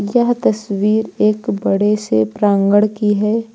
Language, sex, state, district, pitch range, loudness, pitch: Hindi, female, Uttar Pradesh, Lucknow, 205-220 Hz, -16 LUFS, 210 Hz